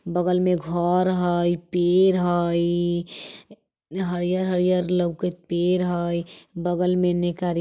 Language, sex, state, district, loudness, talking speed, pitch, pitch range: Bajjika, female, Bihar, Vaishali, -23 LUFS, 120 wpm, 175 Hz, 175-180 Hz